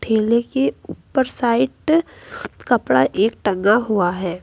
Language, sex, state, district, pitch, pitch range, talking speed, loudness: Hindi, male, Uttar Pradesh, Lucknow, 225 Hz, 205-255 Hz, 120 wpm, -18 LUFS